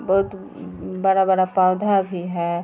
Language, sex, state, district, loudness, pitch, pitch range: Hindi, female, Bihar, Vaishali, -20 LUFS, 185 Hz, 170-195 Hz